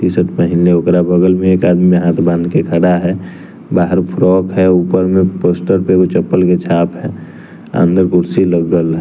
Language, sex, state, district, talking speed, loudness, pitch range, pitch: Hindi, male, Bihar, West Champaran, 195 wpm, -12 LUFS, 85-90 Hz, 90 Hz